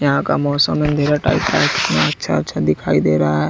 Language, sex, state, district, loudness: Hindi, male, Bihar, West Champaran, -16 LUFS